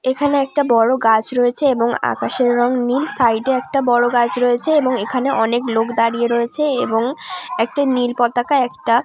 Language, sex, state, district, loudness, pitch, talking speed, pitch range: Bengali, female, West Bengal, Jhargram, -17 LUFS, 245 Hz, 170 wpm, 235-265 Hz